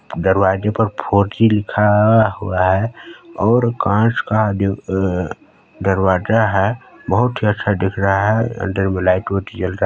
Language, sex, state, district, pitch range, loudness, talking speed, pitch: Hindi, male, Chhattisgarh, Balrampur, 95-110 Hz, -17 LUFS, 150 wpm, 100 Hz